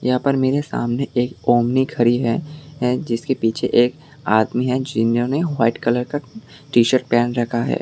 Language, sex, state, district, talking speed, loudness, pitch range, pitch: Hindi, male, Tripura, West Tripura, 170 wpm, -19 LUFS, 120-140 Hz, 125 Hz